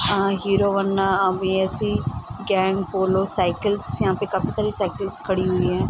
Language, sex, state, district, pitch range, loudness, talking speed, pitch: Hindi, female, Bihar, Sitamarhi, 185-195 Hz, -22 LUFS, 175 wpm, 190 Hz